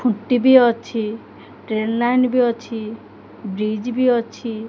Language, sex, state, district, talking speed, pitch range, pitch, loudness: Odia, female, Odisha, Khordha, 130 wpm, 220-245 Hz, 230 Hz, -19 LUFS